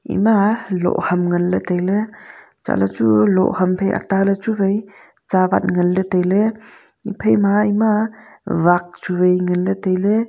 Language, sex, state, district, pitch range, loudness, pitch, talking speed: Wancho, female, Arunachal Pradesh, Longding, 180-210 Hz, -17 LUFS, 195 Hz, 155 wpm